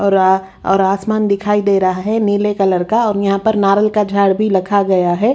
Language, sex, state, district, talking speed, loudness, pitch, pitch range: Hindi, female, Haryana, Rohtak, 225 wpm, -14 LUFS, 200 Hz, 190-210 Hz